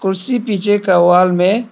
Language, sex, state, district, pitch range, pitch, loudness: Hindi, male, Arunachal Pradesh, Papum Pare, 180-205 Hz, 190 Hz, -13 LUFS